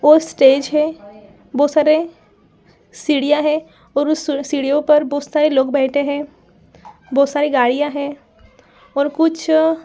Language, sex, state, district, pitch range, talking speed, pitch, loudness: Hindi, female, Bihar, Saran, 280-305 Hz, 145 wpm, 295 Hz, -17 LUFS